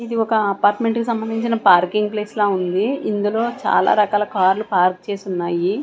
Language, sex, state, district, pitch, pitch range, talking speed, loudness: Telugu, female, Andhra Pradesh, Sri Satya Sai, 210 Hz, 190-225 Hz, 165 wpm, -18 LUFS